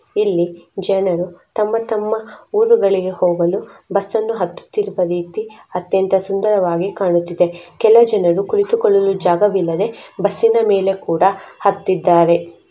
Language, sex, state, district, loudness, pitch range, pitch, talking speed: Kannada, female, Karnataka, Chamarajanagar, -17 LUFS, 175-215 Hz, 195 Hz, 105 wpm